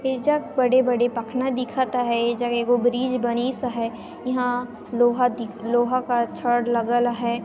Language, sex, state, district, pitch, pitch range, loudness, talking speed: Chhattisgarhi, female, Chhattisgarh, Sarguja, 245 Hz, 235-255 Hz, -23 LUFS, 135 wpm